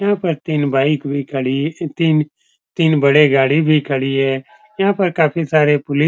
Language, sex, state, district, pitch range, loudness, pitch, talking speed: Hindi, male, Bihar, Supaul, 140-165 Hz, -16 LUFS, 150 Hz, 180 wpm